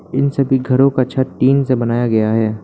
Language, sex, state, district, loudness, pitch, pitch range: Hindi, male, Arunachal Pradesh, Lower Dibang Valley, -15 LUFS, 130 Hz, 120-135 Hz